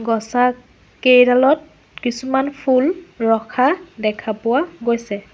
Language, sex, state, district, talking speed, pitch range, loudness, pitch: Assamese, female, Assam, Sonitpur, 90 wpm, 225-270 Hz, -18 LUFS, 250 Hz